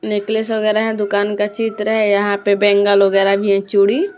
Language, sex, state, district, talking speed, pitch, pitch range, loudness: Hindi, female, Maharashtra, Mumbai Suburban, 200 wpm, 205 Hz, 200-220 Hz, -15 LUFS